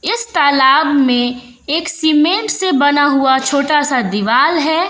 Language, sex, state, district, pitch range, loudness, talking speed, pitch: Hindi, female, Bihar, West Champaran, 265-320 Hz, -13 LUFS, 145 wpm, 285 Hz